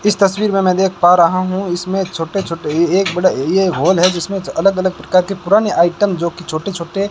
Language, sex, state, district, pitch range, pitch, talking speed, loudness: Hindi, male, Rajasthan, Bikaner, 175-195 Hz, 185 Hz, 230 wpm, -15 LUFS